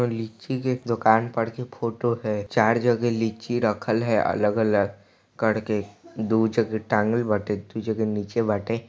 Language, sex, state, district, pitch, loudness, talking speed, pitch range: Bhojpuri, male, Bihar, East Champaran, 110 Hz, -24 LUFS, 160 wpm, 105-115 Hz